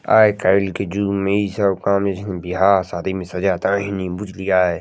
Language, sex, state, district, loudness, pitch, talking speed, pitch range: Maithili, male, Bihar, Madhepura, -19 LUFS, 95 Hz, 150 wpm, 95-100 Hz